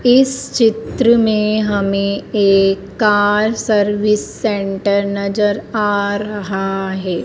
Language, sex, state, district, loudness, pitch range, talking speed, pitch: Hindi, female, Madhya Pradesh, Dhar, -16 LUFS, 200-215 Hz, 100 wpm, 205 Hz